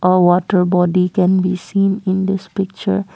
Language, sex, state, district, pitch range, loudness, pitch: English, female, Assam, Kamrup Metropolitan, 180-195 Hz, -16 LUFS, 185 Hz